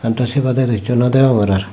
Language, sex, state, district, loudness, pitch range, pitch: Chakma, male, Tripura, Dhalai, -15 LUFS, 115-130 Hz, 125 Hz